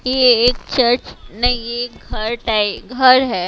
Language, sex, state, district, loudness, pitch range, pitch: Hindi, female, Himachal Pradesh, Shimla, -16 LUFS, 235-250 Hz, 245 Hz